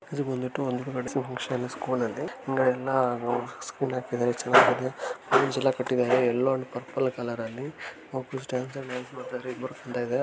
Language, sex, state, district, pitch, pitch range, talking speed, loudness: Kannada, male, Karnataka, Gulbarga, 125 Hz, 125-130 Hz, 160 wpm, -28 LUFS